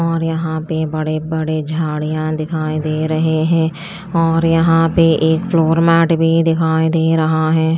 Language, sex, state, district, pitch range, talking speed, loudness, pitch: Hindi, female, Chandigarh, Chandigarh, 155-165 Hz, 160 wpm, -15 LUFS, 160 Hz